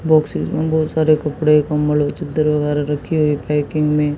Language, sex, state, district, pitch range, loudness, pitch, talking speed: Hindi, female, Haryana, Jhajjar, 150-155 Hz, -17 LUFS, 150 Hz, 185 wpm